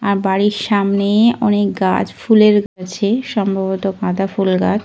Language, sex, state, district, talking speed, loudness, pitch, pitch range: Bengali, female, Jharkhand, Jamtara, 160 wpm, -16 LUFS, 200 Hz, 195-210 Hz